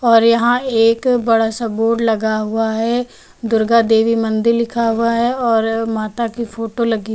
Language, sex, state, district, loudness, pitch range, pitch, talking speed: Hindi, female, Uttar Pradesh, Lucknow, -16 LUFS, 225-235 Hz, 230 Hz, 170 wpm